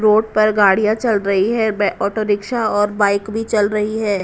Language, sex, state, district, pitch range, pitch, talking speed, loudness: Hindi, female, Punjab, Kapurthala, 205-220 Hz, 210 Hz, 210 wpm, -17 LUFS